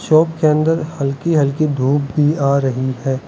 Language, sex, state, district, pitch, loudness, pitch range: Hindi, male, Arunachal Pradesh, Lower Dibang Valley, 145 Hz, -16 LUFS, 135-155 Hz